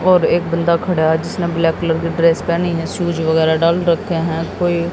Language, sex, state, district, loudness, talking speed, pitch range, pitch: Hindi, female, Haryana, Jhajjar, -16 LUFS, 220 wpm, 165-175 Hz, 170 Hz